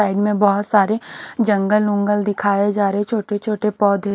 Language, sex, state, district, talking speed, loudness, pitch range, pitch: Hindi, female, Haryana, Charkhi Dadri, 200 wpm, -18 LUFS, 200-210 Hz, 205 Hz